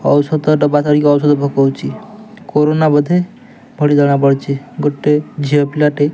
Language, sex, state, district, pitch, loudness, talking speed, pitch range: Odia, male, Odisha, Nuapada, 150 Hz, -14 LUFS, 135 wpm, 145-155 Hz